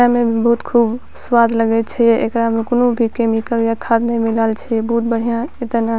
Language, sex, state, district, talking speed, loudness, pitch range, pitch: Maithili, female, Bihar, Purnia, 210 wpm, -16 LUFS, 230-235 Hz, 230 Hz